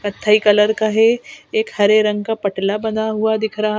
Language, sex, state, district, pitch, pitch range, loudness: Hindi, female, Madhya Pradesh, Bhopal, 215 Hz, 210-220 Hz, -17 LUFS